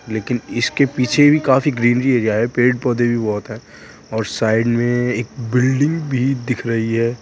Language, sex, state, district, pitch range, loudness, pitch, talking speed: Hindi, male, Bihar, Purnia, 115-130 Hz, -17 LUFS, 120 Hz, 175 wpm